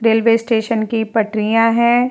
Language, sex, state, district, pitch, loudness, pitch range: Hindi, female, Uttar Pradesh, Muzaffarnagar, 225 Hz, -16 LUFS, 220-230 Hz